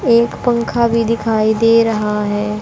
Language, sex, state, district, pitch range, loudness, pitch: Hindi, female, Haryana, Jhajjar, 215-235 Hz, -15 LUFS, 230 Hz